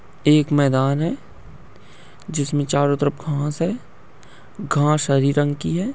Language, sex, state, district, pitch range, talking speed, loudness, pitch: Hindi, male, Uttar Pradesh, Budaun, 140-150 Hz, 130 wpm, -20 LUFS, 145 Hz